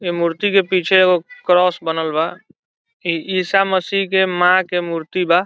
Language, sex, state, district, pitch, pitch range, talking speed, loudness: Bhojpuri, male, Bihar, Saran, 180 Hz, 170-190 Hz, 175 wpm, -17 LUFS